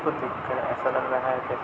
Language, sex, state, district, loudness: Hindi, male, Uttar Pradesh, Budaun, -27 LUFS